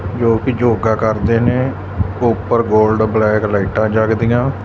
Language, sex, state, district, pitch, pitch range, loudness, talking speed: Punjabi, male, Punjab, Fazilka, 110 Hz, 105-120 Hz, -15 LUFS, 130 wpm